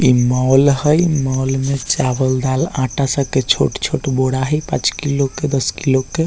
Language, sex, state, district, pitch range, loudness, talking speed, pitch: Bajjika, male, Bihar, Vaishali, 130-145 Hz, -16 LUFS, 180 wpm, 135 Hz